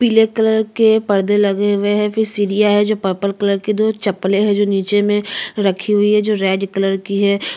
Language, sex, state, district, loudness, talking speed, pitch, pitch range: Hindi, female, Chhattisgarh, Jashpur, -16 LUFS, 220 wpm, 205 Hz, 200-210 Hz